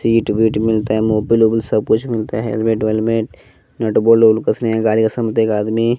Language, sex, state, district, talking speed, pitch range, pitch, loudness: Hindi, male, Bihar, West Champaran, 210 wpm, 110-115 Hz, 110 Hz, -16 LUFS